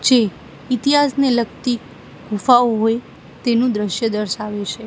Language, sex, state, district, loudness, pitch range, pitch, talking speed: Gujarati, female, Gujarat, Gandhinagar, -18 LUFS, 215-250 Hz, 235 Hz, 110 wpm